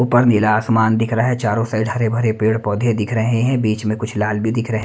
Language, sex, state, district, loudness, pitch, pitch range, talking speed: Hindi, male, Delhi, New Delhi, -17 LUFS, 110 Hz, 110-115 Hz, 285 wpm